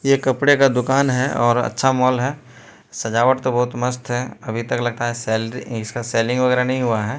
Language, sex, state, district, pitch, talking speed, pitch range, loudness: Hindi, male, Bihar, Katihar, 125 Hz, 210 wpm, 120-130 Hz, -19 LUFS